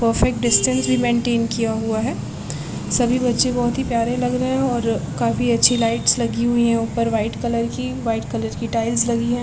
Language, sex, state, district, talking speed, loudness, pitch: Hindi, female, Maharashtra, Aurangabad, 205 wpm, -19 LUFS, 230 Hz